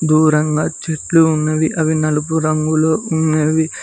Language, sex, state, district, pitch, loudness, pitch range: Telugu, male, Telangana, Mahabubabad, 155 Hz, -16 LUFS, 155-160 Hz